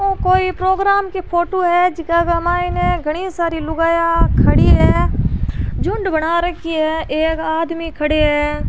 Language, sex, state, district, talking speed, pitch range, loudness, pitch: Rajasthani, female, Rajasthan, Churu, 160 wpm, 320-365 Hz, -16 LUFS, 335 Hz